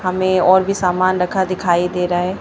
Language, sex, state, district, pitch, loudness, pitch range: Hindi, male, Madhya Pradesh, Bhopal, 185 Hz, -16 LUFS, 180-185 Hz